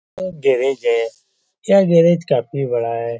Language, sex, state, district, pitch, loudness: Hindi, male, Bihar, Saran, 180 Hz, -17 LUFS